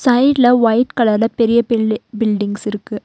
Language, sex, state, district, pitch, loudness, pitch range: Tamil, female, Tamil Nadu, Nilgiris, 230 Hz, -15 LUFS, 215-245 Hz